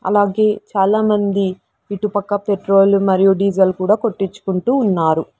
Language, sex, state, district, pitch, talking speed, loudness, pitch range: Telugu, female, Andhra Pradesh, Sri Satya Sai, 200 Hz, 100 wpm, -16 LUFS, 195-210 Hz